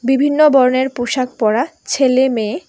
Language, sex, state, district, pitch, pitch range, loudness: Bengali, female, Tripura, West Tripura, 260 Hz, 245-275 Hz, -15 LUFS